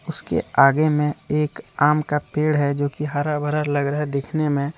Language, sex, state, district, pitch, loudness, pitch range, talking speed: Hindi, male, Jharkhand, Deoghar, 150 Hz, -21 LUFS, 145-150 Hz, 200 wpm